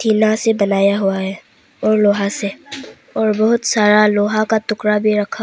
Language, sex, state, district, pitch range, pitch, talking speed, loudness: Hindi, female, Arunachal Pradesh, Papum Pare, 205-220 Hz, 210 Hz, 175 wpm, -16 LUFS